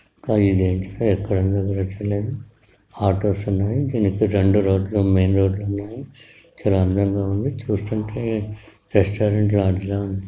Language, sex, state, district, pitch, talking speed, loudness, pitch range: Telugu, female, Telangana, Karimnagar, 100 Hz, 115 wpm, -21 LUFS, 95-105 Hz